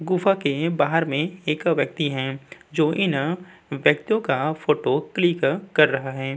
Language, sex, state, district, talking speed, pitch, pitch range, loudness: Hindi, male, Uttar Pradesh, Budaun, 150 wpm, 160 Hz, 145-180 Hz, -22 LUFS